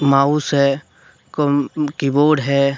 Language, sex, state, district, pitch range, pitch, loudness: Hindi, male, Jharkhand, Deoghar, 140-145 Hz, 140 Hz, -17 LUFS